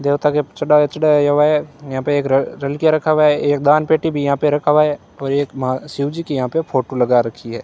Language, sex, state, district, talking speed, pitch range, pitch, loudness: Hindi, male, Rajasthan, Bikaner, 265 wpm, 135-150 Hz, 145 Hz, -17 LUFS